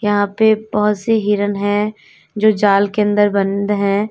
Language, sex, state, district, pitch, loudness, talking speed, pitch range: Hindi, female, Uttar Pradesh, Lalitpur, 205 Hz, -16 LUFS, 175 wpm, 205-215 Hz